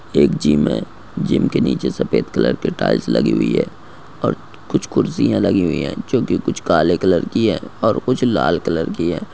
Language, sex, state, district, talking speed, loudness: Hindi, male, Goa, North and South Goa, 200 wpm, -18 LUFS